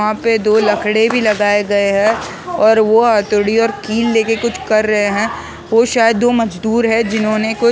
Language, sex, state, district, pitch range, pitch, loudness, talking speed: Hindi, male, Maharashtra, Mumbai Suburban, 210-230 Hz, 220 Hz, -14 LUFS, 195 wpm